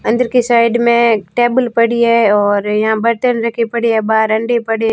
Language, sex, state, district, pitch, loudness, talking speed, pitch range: Hindi, female, Rajasthan, Barmer, 230 Hz, -13 LUFS, 195 wpm, 220-235 Hz